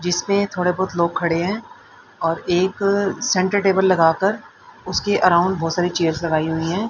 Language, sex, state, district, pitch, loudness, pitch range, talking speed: Hindi, female, Haryana, Rohtak, 185 Hz, -19 LUFS, 170-200 Hz, 165 wpm